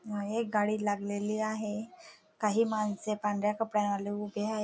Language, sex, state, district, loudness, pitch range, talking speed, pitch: Marathi, female, Maharashtra, Dhule, -32 LUFS, 205-215 Hz, 140 wpm, 210 Hz